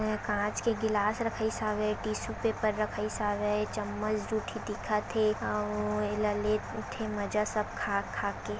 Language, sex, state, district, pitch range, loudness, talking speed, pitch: Chhattisgarhi, female, Chhattisgarh, Raigarh, 210-215 Hz, -31 LUFS, 145 wpm, 210 Hz